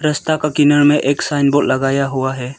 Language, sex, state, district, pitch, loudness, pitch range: Hindi, male, Arunachal Pradesh, Lower Dibang Valley, 145 Hz, -15 LUFS, 135-150 Hz